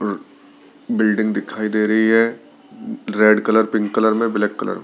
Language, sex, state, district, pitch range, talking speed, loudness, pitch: Hindi, male, Delhi, New Delhi, 110-115 Hz, 160 wpm, -18 LUFS, 110 Hz